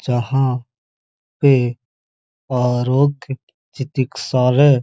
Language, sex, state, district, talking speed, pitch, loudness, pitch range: Hindi, male, Uttar Pradesh, Hamirpur, 60 wpm, 130 Hz, -18 LUFS, 125-135 Hz